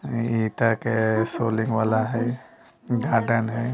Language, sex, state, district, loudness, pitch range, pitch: Bajjika, male, Bihar, Vaishali, -23 LUFS, 110-120 Hz, 115 Hz